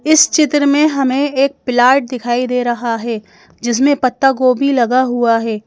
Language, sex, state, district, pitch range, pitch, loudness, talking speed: Hindi, female, Madhya Pradesh, Bhopal, 240-275 Hz, 255 Hz, -14 LUFS, 170 wpm